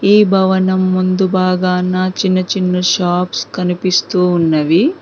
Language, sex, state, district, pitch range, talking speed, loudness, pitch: Telugu, female, Telangana, Mahabubabad, 180-190 Hz, 110 wpm, -14 LUFS, 185 Hz